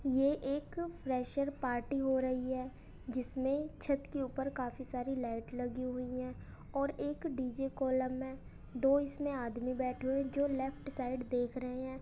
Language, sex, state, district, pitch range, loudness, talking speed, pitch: Hindi, female, Uttar Pradesh, Muzaffarnagar, 255-275 Hz, -37 LUFS, 170 wpm, 260 Hz